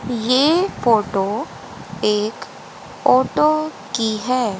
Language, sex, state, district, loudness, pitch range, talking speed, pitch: Hindi, female, Haryana, Jhajjar, -19 LUFS, 210-265 Hz, 80 wpm, 230 Hz